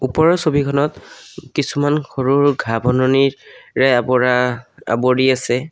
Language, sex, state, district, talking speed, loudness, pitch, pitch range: Assamese, male, Assam, Kamrup Metropolitan, 105 wpm, -17 LUFS, 130 Hz, 125-145 Hz